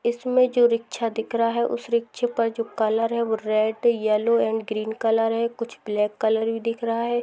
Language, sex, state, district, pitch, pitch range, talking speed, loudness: Hindi, female, Bihar, Sitamarhi, 230 Hz, 220-235 Hz, 215 wpm, -23 LUFS